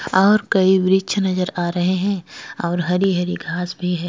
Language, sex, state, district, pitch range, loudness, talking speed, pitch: Hindi, female, Goa, North and South Goa, 180-190 Hz, -19 LUFS, 175 wpm, 185 Hz